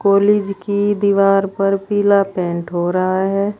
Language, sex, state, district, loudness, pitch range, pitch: Hindi, female, Uttar Pradesh, Saharanpur, -16 LUFS, 190-200 Hz, 195 Hz